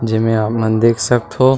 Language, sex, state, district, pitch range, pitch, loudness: Chhattisgarhi, male, Chhattisgarh, Sarguja, 110-120 Hz, 115 Hz, -15 LUFS